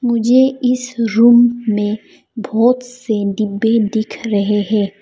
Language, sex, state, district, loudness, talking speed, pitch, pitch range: Hindi, female, Arunachal Pradesh, Papum Pare, -15 LUFS, 120 wpm, 225 Hz, 215-240 Hz